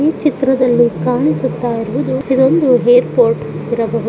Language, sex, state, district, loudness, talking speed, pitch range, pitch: Kannada, female, Karnataka, Dakshina Kannada, -14 LUFS, 105 wpm, 235-270 Hz, 250 Hz